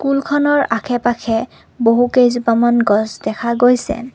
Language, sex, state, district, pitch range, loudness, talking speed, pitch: Assamese, female, Assam, Kamrup Metropolitan, 230-255 Hz, -15 LUFS, 130 wpm, 240 Hz